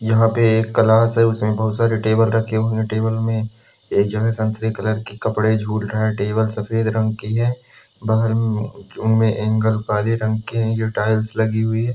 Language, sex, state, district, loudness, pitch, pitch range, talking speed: Hindi, male, Uttarakhand, Uttarkashi, -19 LUFS, 110 Hz, 110-115 Hz, 205 wpm